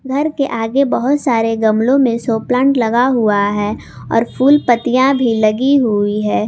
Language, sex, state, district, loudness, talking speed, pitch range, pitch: Hindi, female, Jharkhand, Garhwa, -14 LUFS, 175 wpm, 220-265 Hz, 240 Hz